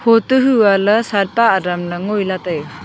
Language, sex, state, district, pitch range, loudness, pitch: Wancho, female, Arunachal Pradesh, Longding, 180-230 Hz, -15 LUFS, 200 Hz